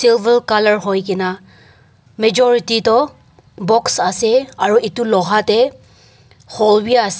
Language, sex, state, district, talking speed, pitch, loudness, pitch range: Nagamese, male, Nagaland, Dimapur, 125 wpm, 225 Hz, -15 LUFS, 210-240 Hz